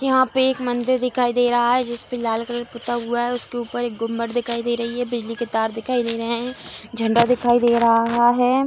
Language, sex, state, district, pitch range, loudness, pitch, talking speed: Hindi, female, Bihar, Samastipur, 235-245 Hz, -21 LUFS, 240 Hz, 240 wpm